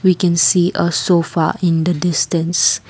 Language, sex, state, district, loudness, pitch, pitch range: English, female, Assam, Kamrup Metropolitan, -15 LUFS, 170 Hz, 160-175 Hz